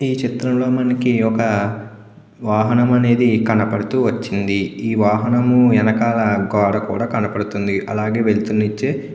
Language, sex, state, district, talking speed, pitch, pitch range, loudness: Telugu, male, Andhra Pradesh, Anantapur, 120 wpm, 110 Hz, 105-120 Hz, -17 LUFS